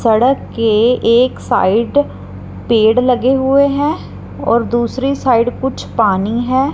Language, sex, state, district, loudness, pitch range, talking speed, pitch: Hindi, female, Punjab, Fazilka, -14 LUFS, 230-265 Hz, 125 wpm, 245 Hz